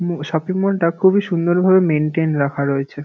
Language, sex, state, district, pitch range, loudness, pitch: Bengali, male, West Bengal, North 24 Parganas, 150-185 Hz, -17 LUFS, 165 Hz